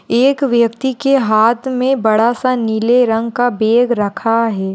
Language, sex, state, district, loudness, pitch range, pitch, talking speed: Hindi, female, Maharashtra, Pune, -14 LUFS, 225-255 Hz, 235 Hz, 165 wpm